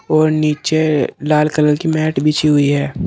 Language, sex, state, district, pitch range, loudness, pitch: Hindi, male, Uttar Pradesh, Saharanpur, 150-155 Hz, -15 LUFS, 150 Hz